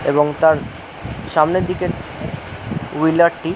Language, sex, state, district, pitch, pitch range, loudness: Bengali, male, West Bengal, North 24 Parganas, 160 Hz, 155-175 Hz, -18 LUFS